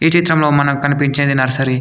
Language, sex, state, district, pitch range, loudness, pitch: Telugu, male, Telangana, Komaram Bheem, 140-150 Hz, -14 LUFS, 145 Hz